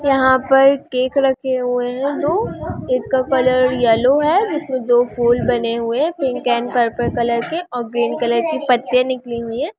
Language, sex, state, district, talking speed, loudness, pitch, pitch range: Hindi, female, Bihar, Sitamarhi, 185 wpm, -17 LUFS, 255 Hz, 240-270 Hz